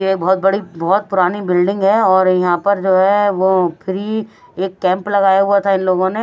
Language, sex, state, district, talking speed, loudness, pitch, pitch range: Hindi, female, Haryana, Rohtak, 220 wpm, -15 LUFS, 190 Hz, 185-200 Hz